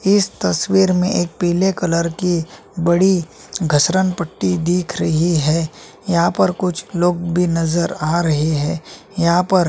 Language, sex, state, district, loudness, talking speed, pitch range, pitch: Hindi, male, Chhattisgarh, Sukma, -17 LUFS, 150 wpm, 165-185 Hz, 175 Hz